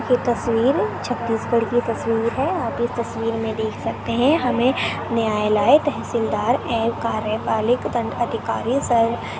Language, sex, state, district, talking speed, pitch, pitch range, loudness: Hindi, female, Chhattisgarh, Sarguja, 140 wpm, 230 Hz, 225-245 Hz, -21 LUFS